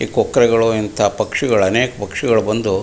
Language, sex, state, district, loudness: Kannada, male, Karnataka, Mysore, -16 LUFS